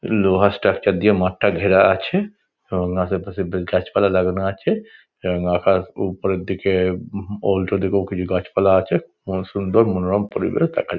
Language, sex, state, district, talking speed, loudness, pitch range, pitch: Bengali, male, West Bengal, Dakshin Dinajpur, 155 wpm, -20 LUFS, 90-100 Hz, 95 Hz